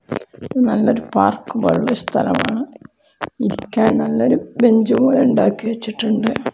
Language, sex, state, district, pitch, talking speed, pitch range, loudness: Malayalam, female, Kerala, Kozhikode, 235 Hz, 85 wpm, 225-255 Hz, -17 LUFS